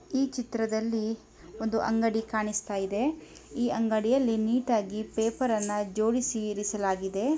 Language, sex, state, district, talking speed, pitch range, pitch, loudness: Kannada, female, Karnataka, Mysore, 95 wpm, 210-240 Hz, 220 Hz, -29 LUFS